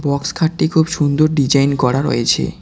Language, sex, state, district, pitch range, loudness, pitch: Bengali, male, West Bengal, Cooch Behar, 140-160 Hz, -15 LUFS, 145 Hz